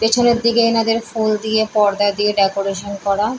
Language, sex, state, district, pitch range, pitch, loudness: Bengali, female, West Bengal, Paschim Medinipur, 200-225 Hz, 215 Hz, -17 LUFS